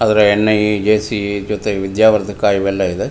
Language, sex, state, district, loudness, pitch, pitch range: Kannada, male, Karnataka, Mysore, -15 LUFS, 105 Hz, 100-105 Hz